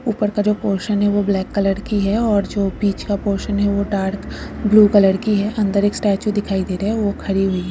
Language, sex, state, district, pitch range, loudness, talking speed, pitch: Hindi, female, West Bengal, Purulia, 195-210 Hz, -18 LUFS, 240 wpm, 205 Hz